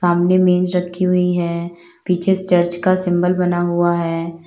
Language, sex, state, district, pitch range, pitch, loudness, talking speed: Hindi, female, Uttar Pradesh, Lalitpur, 175-180 Hz, 175 Hz, -17 LUFS, 160 wpm